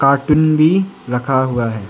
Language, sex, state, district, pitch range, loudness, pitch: Hindi, male, Arunachal Pradesh, Lower Dibang Valley, 125-155 Hz, -15 LUFS, 140 Hz